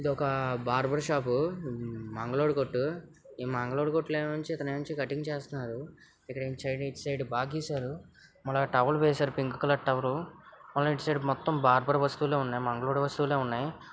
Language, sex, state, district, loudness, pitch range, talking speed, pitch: Telugu, male, Andhra Pradesh, Visakhapatnam, -30 LUFS, 130-150 Hz, 135 wpm, 140 Hz